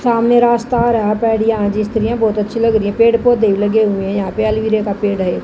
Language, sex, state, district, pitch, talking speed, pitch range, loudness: Hindi, female, Haryana, Jhajjar, 220 Hz, 255 wpm, 205-230 Hz, -14 LUFS